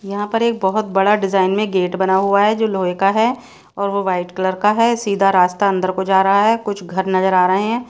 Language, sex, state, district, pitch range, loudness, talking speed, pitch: Hindi, female, Odisha, Sambalpur, 190-210 Hz, -16 LUFS, 260 wpm, 195 Hz